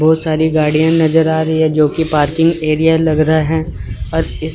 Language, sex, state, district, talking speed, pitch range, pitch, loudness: Hindi, male, Chandigarh, Chandigarh, 210 wpm, 155-160 Hz, 160 Hz, -13 LUFS